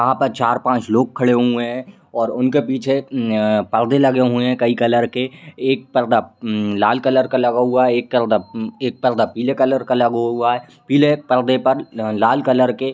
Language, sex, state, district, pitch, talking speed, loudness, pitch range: Hindi, male, Uttar Pradesh, Ghazipur, 125 Hz, 210 wpm, -17 LUFS, 120-130 Hz